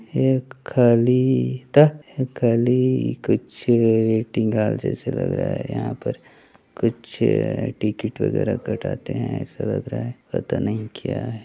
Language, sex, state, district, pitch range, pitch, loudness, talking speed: Chhattisgarhi, male, Chhattisgarh, Bilaspur, 110-130 Hz, 120 Hz, -22 LUFS, 130 wpm